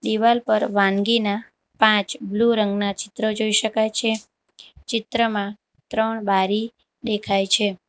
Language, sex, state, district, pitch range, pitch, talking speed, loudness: Gujarati, female, Gujarat, Valsad, 205-225 Hz, 220 Hz, 115 wpm, -21 LUFS